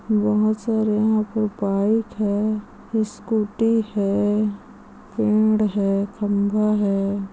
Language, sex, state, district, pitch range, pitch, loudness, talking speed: Hindi, female, Andhra Pradesh, Chittoor, 205-215 Hz, 210 Hz, -21 LUFS, 105 wpm